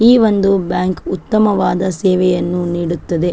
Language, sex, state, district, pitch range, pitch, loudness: Kannada, female, Karnataka, Chamarajanagar, 175-195 Hz, 185 Hz, -15 LUFS